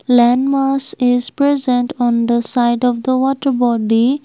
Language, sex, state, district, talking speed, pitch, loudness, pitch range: English, female, Assam, Kamrup Metropolitan, 155 wpm, 250 Hz, -15 LUFS, 240-270 Hz